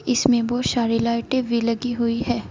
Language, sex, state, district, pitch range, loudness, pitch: Hindi, female, Uttar Pradesh, Saharanpur, 230-245 Hz, -21 LUFS, 235 Hz